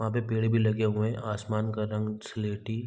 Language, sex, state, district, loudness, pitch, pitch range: Hindi, male, Chhattisgarh, Raigarh, -30 LUFS, 110 Hz, 105-110 Hz